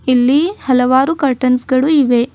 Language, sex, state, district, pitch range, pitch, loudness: Kannada, female, Karnataka, Bidar, 250-280 Hz, 260 Hz, -13 LUFS